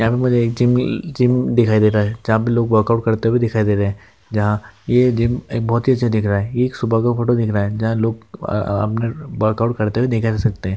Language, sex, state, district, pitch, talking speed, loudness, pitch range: Hindi, male, West Bengal, Malda, 115 Hz, 280 wpm, -18 LUFS, 105-120 Hz